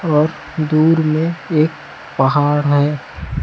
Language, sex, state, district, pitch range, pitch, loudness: Hindi, male, Chhattisgarh, Raipur, 145-160 Hz, 155 Hz, -16 LUFS